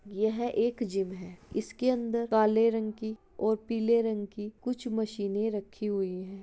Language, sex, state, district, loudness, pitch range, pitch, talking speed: Hindi, female, Uttar Pradesh, Jalaun, -30 LUFS, 205-230 Hz, 220 Hz, 170 wpm